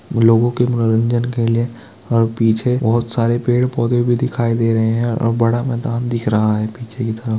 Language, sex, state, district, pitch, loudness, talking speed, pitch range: Hindi, male, Bihar, Kishanganj, 115 Hz, -17 LUFS, 195 wpm, 115-120 Hz